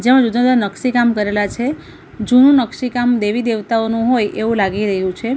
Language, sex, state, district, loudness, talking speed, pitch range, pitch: Gujarati, female, Gujarat, Valsad, -15 LUFS, 155 wpm, 210-250 Hz, 230 Hz